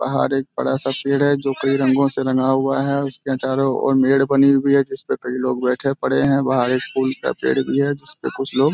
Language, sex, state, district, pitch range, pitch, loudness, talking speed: Hindi, male, Bihar, Araria, 130-140 Hz, 135 Hz, -19 LUFS, 245 wpm